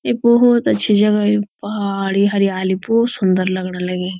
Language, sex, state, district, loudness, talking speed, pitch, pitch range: Garhwali, female, Uttarakhand, Uttarkashi, -16 LUFS, 155 wpm, 200 Hz, 185-210 Hz